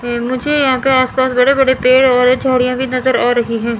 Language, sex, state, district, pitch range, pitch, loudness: Hindi, female, Chandigarh, Chandigarh, 245-260 Hz, 255 Hz, -13 LUFS